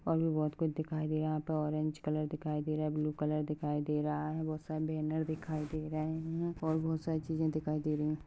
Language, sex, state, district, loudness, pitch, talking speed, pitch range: Hindi, female, Goa, North and South Goa, -36 LUFS, 155 Hz, 260 wpm, 150-160 Hz